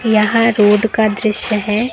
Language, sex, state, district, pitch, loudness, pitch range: Hindi, female, Uttar Pradesh, Lucknow, 215 Hz, -14 LUFS, 210-225 Hz